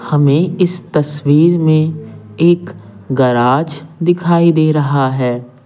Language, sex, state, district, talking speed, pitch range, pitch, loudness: Hindi, male, Bihar, Patna, 105 wpm, 130-170 Hz, 150 Hz, -13 LUFS